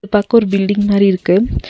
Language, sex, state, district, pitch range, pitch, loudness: Tamil, female, Tamil Nadu, Nilgiris, 195-205 Hz, 200 Hz, -13 LUFS